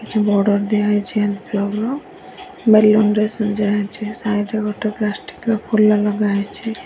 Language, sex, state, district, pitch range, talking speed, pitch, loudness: Odia, female, Odisha, Nuapada, 205-215 Hz, 165 wpm, 210 Hz, -18 LUFS